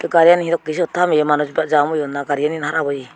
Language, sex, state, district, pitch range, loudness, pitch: Chakma, female, Tripura, Unakoti, 145-165 Hz, -17 LUFS, 150 Hz